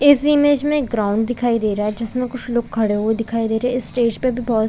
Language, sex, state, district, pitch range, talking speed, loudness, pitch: Hindi, female, Chhattisgarh, Bilaspur, 220-255 Hz, 295 wpm, -19 LUFS, 235 Hz